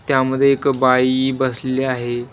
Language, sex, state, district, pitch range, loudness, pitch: Marathi, male, Maharashtra, Washim, 130-135 Hz, -17 LUFS, 130 Hz